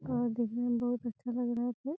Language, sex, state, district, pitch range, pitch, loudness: Hindi, female, Bihar, Gopalganj, 240-245 Hz, 240 Hz, -34 LUFS